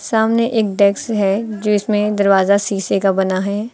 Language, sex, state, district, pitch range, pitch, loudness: Hindi, female, Uttar Pradesh, Lucknow, 195-215 Hz, 205 Hz, -16 LUFS